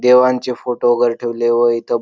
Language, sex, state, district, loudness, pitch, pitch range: Marathi, male, Maharashtra, Dhule, -15 LUFS, 120 Hz, 120-125 Hz